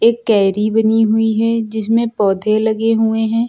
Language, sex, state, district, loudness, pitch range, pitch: Hindi, male, Uttar Pradesh, Lucknow, -15 LUFS, 215-225 Hz, 220 Hz